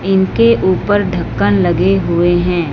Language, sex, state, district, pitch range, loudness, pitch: Hindi, male, Punjab, Fazilka, 145-190 Hz, -13 LUFS, 175 Hz